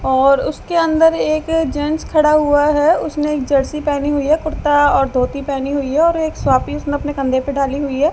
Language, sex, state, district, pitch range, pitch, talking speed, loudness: Hindi, female, Haryana, Jhajjar, 275-310 Hz, 290 Hz, 215 wpm, -16 LUFS